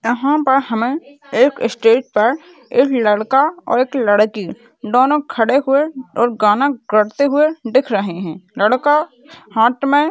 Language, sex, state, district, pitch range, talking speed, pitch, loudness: Hindi, female, Maharashtra, Dhule, 225-280 Hz, 140 wpm, 255 Hz, -16 LUFS